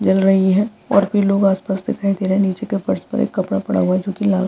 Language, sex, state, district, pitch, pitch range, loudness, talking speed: Hindi, female, Bihar, Vaishali, 195 Hz, 190-200 Hz, -18 LUFS, 320 wpm